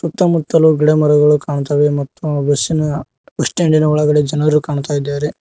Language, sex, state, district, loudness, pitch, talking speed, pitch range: Kannada, male, Karnataka, Koppal, -14 LUFS, 150 Hz, 135 wpm, 145-155 Hz